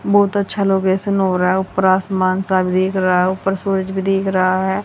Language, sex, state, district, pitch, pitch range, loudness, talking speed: Hindi, female, Haryana, Rohtak, 190 Hz, 185-195 Hz, -17 LUFS, 220 wpm